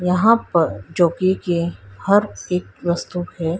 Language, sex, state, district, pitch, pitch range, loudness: Hindi, female, Haryana, Jhajjar, 175 Hz, 170-185 Hz, -20 LUFS